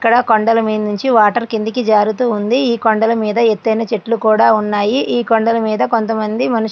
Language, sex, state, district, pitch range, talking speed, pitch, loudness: Telugu, female, Andhra Pradesh, Srikakulam, 215-235 Hz, 125 wpm, 225 Hz, -14 LUFS